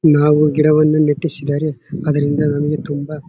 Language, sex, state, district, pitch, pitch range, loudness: Kannada, male, Karnataka, Bellary, 150 Hz, 145-155 Hz, -16 LUFS